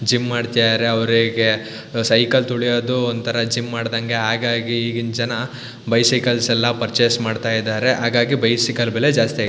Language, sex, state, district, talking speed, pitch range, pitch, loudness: Kannada, male, Karnataka, Shimoga, 145 wpm, 115-120 Hz, 115 Hz, -18 LUFS